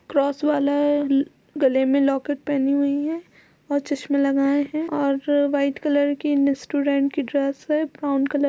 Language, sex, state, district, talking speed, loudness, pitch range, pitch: Hindi, female, Uttar Pradesh, Budaun, 170 wpm, -22 LUFS, 275-290 Hz, 285 Hz